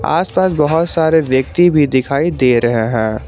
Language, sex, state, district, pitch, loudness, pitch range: Hindi, male, Jharkhand, Garhwa, 140 Hz, -14 LUFS, 120-165 Hz